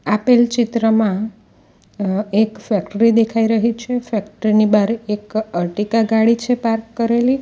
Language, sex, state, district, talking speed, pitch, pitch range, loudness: Gujarati, female, Gujarat, Valsad, 135 wpm, 220 Hz, 210-230 Hz, -17 LUFS